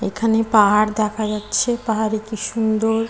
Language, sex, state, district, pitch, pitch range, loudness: Bengali, female, West Bengal, Kolkata, 220 Hz, 215-225 Hz, -19 LUFS